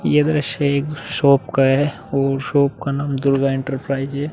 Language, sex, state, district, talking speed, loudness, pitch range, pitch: Hindi, male, Uttar Pradesh, Muzaffarnagar, 195 wpm, -19 LUFS, 135-145 Hz, 140 Hz